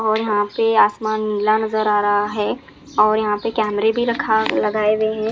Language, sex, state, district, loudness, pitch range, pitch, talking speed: Hindi, male, Punjab, Fazilka, -18 LUFS, 210-220 Hz, 215 Hz, 205 wpm